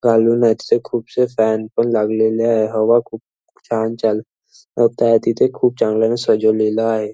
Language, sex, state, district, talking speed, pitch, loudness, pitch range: Marathi, male, Maharashtra, Nagpur, 125 wpm, 115 Hz, -17 LUFS, 110-115 Hz